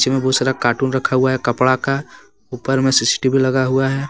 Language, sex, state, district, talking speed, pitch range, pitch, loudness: Hindi, male, Jharkhand, Deoghar, 235 wpm, 130-135 Hz, 130 Hz, -17 LUFS